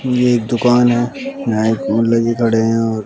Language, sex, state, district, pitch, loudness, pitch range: Hindi, male, Bihar, West Champaran, 115 Hz, -15 LUFS, 115-125 Hz